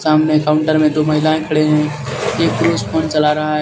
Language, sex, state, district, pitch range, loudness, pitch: Hindi, male, Jharkhand, Deoghar, 150-155 Hz, -15 LUFS, 155 Hz